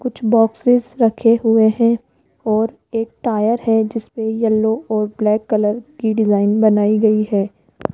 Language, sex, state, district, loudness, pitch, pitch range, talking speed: Hindi, female, Rajasthan, Jaipur, -17 LUFS, 220 Hz, 215-230 Hz, 145 wpm